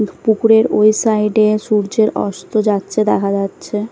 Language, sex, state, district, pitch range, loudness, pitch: Bengali, female, Bihar, Katihar, 205-220 Hz, -15 LUFS, 215 Hz